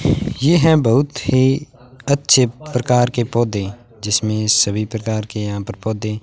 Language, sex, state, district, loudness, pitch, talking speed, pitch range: Hindi, male, Rajasthan, Bikaner, -17 LUFS, 120 Hz, 155 wpm, 110-135 Hz